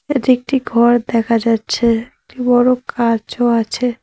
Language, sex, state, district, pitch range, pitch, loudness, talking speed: Bengali, female, West Bengal, Cooch Behar, 230-250 Hz, 240 Hz, -15 LUFS, 135 wpm